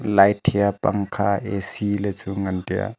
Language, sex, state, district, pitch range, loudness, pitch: Wancho, male, Arunachal Pradesh, Longding, 95-100 Hz, -21 LUFS, 100 Hz